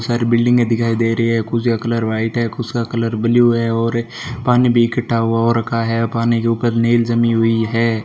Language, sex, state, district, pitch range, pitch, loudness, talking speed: Hindi, male, Rajasthan, Bikaner, 115-120 Hz, 115 Hz, -16 LUFS, 230 wpm